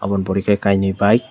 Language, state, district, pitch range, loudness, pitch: Kokborok, Tripura, West Tripura, 95-105 Hz, -17 LUFS, 100 Hz